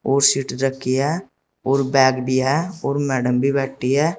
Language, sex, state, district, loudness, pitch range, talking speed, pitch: Hindi, male, Uttar Pradesh, Saharanpur, -19 LUFS, 130-140 Hz, 185 wpm, 135 Hz